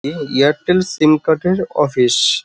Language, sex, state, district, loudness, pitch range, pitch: Bengali, male, West Bengal, Dakshin Dinajpur, -15 LUFS, 140-175 Hz, 150 Hz